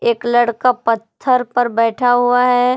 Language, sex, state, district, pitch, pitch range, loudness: Hindi, female, Jharkhand, Palamu, 245 Hz, 235-250 Hz, -15 LUFS